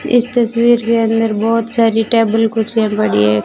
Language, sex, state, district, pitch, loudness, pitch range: Hindi, female, Rajasthan, Jaisalmer, 225 Hz, -14 LUFS, 220-230 Hz